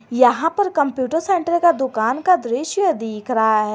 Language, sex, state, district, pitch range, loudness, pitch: Hindi, female, Jharkhand, Garhwa, 230-345 Hz, -18 LUFS, 270 Hz